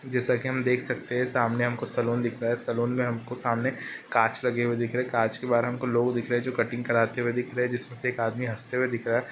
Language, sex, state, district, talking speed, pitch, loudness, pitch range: Hindi, male, Uttar Pradesh, Ghazipur, 315 wpm, 120 Hz, -27 LUFS, 120-125 Hz